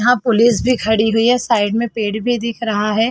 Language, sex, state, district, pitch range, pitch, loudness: Hindi, female, Chhattisgarh, Rajnandgaon, 220-240 Hz, 230 Hz, -16 LUFS